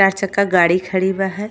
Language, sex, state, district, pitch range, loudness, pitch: Bhojpuri, female, Uttar Pradesh, Gorakhpur, 185-195 Hz, -17 LUFS, 195 Hz